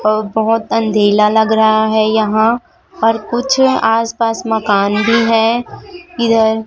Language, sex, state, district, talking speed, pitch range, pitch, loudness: Hindi, female, Chhattisgarh, Raipur, 135 wpm, 220-230 Hz, 225 Hz, -13 LUFS